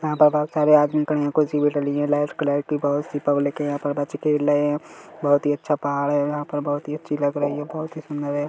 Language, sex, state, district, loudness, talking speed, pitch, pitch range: Hindi, male, Chhattisgarh, Kabirdham, -22 LUFS, 270 wpm, 145 Hz, 145-150 Hz